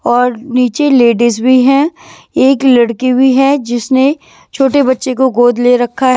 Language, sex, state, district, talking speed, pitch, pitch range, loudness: Hindi, female, Himachal Pradesh, Shimla, 165 wpm, 255 Hz, 245-270 Hz, -11 LUFS